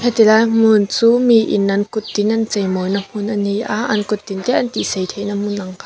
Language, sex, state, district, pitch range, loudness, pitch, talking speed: Mizo, female, Mizoram, Aizawl, 200-220 Hz, -16 LUFS, 210 Hz, 225 wpm